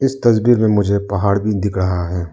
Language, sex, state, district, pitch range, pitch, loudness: Hindi, male, Arunachal Pradesh, Lower Dibang Valley, 95-110 Hz, 100 Hz, -16 LUFS